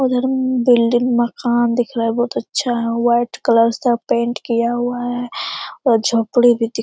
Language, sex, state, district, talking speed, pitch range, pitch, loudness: Hindi, female, Bihar, Jamui, 195 wpm, 230-245 Hz, 240 Hz, -17 LUFS